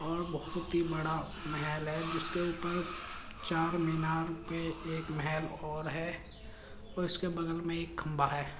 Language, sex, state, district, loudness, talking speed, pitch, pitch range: Hindi, male, Uttar Pradesh, Jalaun, -36 LUFS, 155 wpm, 165 Hz, 155-170 Hz